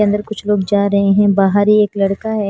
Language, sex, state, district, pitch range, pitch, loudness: Hindi, female, Haryana, Charkhi Dadri, 200-210 Hz, 205 Hz, -14 LUFS